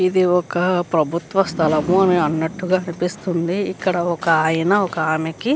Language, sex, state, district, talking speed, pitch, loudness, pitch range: Telugu, female, Andhra Pradesh, Chittoor, 150 wpm, 175 Hz, -19 LUFS, 165-185 Hz